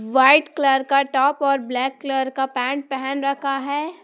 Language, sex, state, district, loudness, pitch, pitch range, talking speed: Hindi, female, Jharkhand, Palamu, -20 LUFS, 275 Hz, 265-280 Hz, 180 wpm